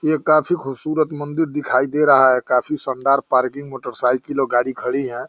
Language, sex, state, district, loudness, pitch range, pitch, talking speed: Hindi, male, Uttar Pradesh, Deoria, -19 LUFS, 125-150 Hz, 135 Hz, 180 wpm